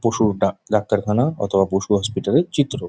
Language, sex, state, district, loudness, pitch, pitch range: Bengali, male, West Bengal, Jhargram, -20 LUFS, 105 Hz, 100-125 Hz